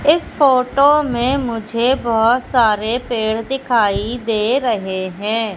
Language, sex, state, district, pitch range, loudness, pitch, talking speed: Hindi, female, Madhya Pradesh, Katni, 220-260 Hz, -17 LUFS, 235 Hz, 120 wpm